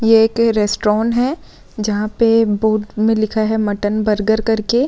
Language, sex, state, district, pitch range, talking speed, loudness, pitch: Hindi, female, Uttar Pradesh, Muzaffarnagar, 210-225 Hz, 160 wpm, -16 LUFS, 220 Hz